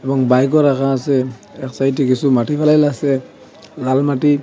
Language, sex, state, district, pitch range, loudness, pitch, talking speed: Bengali, male, Assam, Hailakandi, 130-145 Hz, -16 LUFS, 135 Hz, 190 wpm